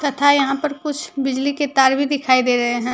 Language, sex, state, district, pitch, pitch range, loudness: Hindi, female, Jharkhand, Deoghar, 275 Hz, 260-285 Hz, -18 LUFS